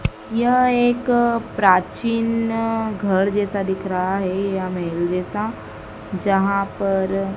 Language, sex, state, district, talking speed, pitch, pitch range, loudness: Hindi, male, Madhya Pradesh, Dhar, 105 wpm, 195 Hz, 190-225 Hz, -20 LUFS